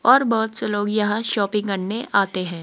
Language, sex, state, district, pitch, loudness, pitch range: Hindi, female, Rajasthan, Jaipur, 210 Hz, -21 LUFS, 200-220 Hz